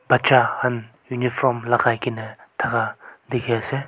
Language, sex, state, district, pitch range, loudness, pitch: Nagamese, male, Nagaland, Kohima, 115-125 Hz, -21 LUFS, 120 Hz